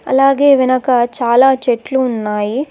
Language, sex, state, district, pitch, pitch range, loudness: Telugu, female, Telangana, Mahabubabad, 255 Hz, 240-270 Hz, -13 LUFS